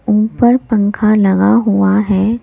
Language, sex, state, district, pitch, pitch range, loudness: Hindi, female, Delhi, New Delhi, 210 Hz, 200-225 Hz, -12 LUFS